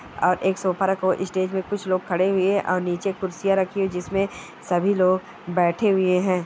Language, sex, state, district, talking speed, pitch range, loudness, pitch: Hindi, female, Bihar, East Champaran, 220 wpm, 180-195 Hz, -23 LUFS, 185 Hz